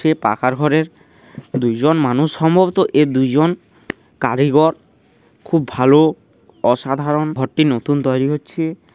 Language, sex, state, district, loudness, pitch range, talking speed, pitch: Bengali, male, West Bengal, Dakshin Dinajpur, -16 LUFS, 130-160 Hz, 120 wpm, 150 Hz